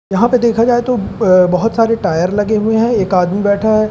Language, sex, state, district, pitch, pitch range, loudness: Hindi, male, Madhya Pradesh, Umaria, 215 Hz, 195-230 Hz, -13 LUFS